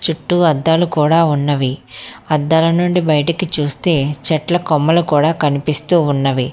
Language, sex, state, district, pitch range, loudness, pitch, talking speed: Telugu, female, Telangana, Hyderabad, 145-165 Hz, -15 LUFS, 155 Hz, 120 wpm